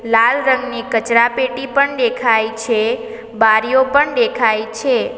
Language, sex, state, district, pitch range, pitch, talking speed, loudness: Gujarati, female, Gujarat, Valsad, 225-280 Hz, 240 Hz, 115 wpm, -15 LUFS